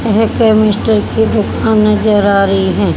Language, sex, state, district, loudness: Hindi, female, Haryana, Rohtak, -11 LUFS